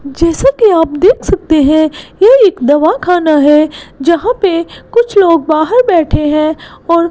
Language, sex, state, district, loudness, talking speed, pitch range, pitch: Hindi, female, Gujarat, Gandhinagar, -10 LUFS, 150 wpm, 310-395 Hz, 335 Hz